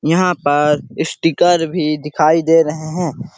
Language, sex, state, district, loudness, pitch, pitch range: Hindi, male, Chhattisgarh, Sarguja, -15 LUFS, 160 Hz, 150-170 Hz